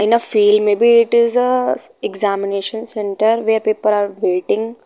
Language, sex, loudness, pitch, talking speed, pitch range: English, female, -15 LUFS, 215 Hz, 175 wpm, 205-235 Hz